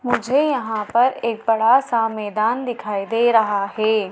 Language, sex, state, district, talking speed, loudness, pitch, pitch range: Hindi, female, Madhya Pradesh, Dhar, 160 wpm, -19 LUFS, 225 Hz, 215-245 Hz